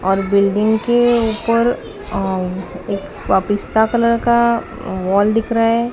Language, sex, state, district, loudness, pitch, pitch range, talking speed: Hindi, male, Maharashtra, Mumbai Suburban, -17 LUFS, 220 Hz, 195-235 Hz, 130 wpm